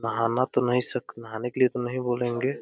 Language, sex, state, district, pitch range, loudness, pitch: Hindi, male, Uttar Pradesh, Deoria, 115-125 Hz, -26 LUFS, 125 Hz